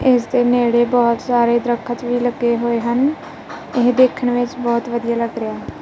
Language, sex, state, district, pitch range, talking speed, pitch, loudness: Punjabi, female, Punjab, Kapurthala, 235-245 Hz, 175 wpm, 240 Hz, -17 LUFS